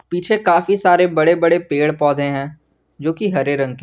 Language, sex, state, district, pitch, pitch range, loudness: Hindi, male, Jharkhand, Garhwa, 160 Hz, 145-175 Hz, -16 LUFS